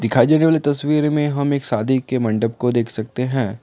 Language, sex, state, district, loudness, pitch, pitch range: Hindi, male, Assam, Kamrup Metropolitan, -18 LUFS, 130 Hz, 120-145 Hz